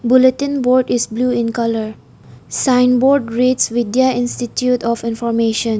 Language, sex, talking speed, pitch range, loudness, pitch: English, female, 135 wpm, 230-255 Hz, -16 LUFS, 245 Hz